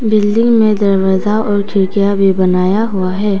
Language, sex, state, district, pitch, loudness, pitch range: Hindi, female, Arunachal Pradesh, Papum Pare, 200 Hz, -13 LUFS, 190-210 Hz